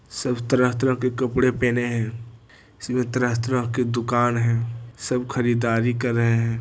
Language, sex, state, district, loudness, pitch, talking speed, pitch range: Hindi, male, Bihar, Jamui, -23 LUFS, 120 Hz, 155 wpm, 115-125 Hz